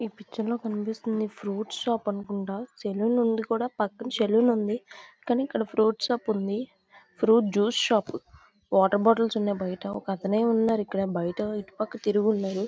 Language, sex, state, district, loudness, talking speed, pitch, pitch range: Telugu, female, Andhra Pradesh, Visakhapatnam, -27 LUFS, 145 wpm, 215 Hz, 205-230 Hz